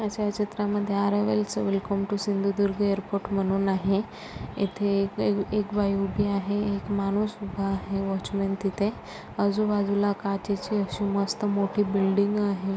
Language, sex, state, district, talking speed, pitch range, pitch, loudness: Marathi, female, Maharashtra, Sindhudurg, 145 wpm, 195-205 Hz, 200 Hz, -27 LUFS